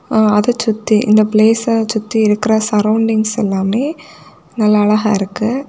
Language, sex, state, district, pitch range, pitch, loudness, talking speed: Tamil, female, Tamil Nadu, Kanyakumari, 210-225 Hz, 215 Hz, -14 LUFS, 115 wpm